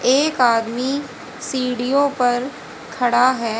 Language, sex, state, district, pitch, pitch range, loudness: Hindi, female, Haryana, Charkhi Dadri, 250 Hz, 240-265 Hz, -19 LUFS